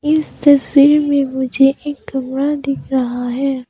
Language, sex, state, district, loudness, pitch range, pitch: Hindi, female, Arunachal Pradesh, Papum Pare, -15 LUFS, 265-290 Hz, 275 Hz